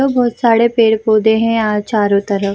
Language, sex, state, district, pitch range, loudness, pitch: Hindi, female, Bihar, Samastipur, 210-230 Hz, -13 LUFS, 220 Hz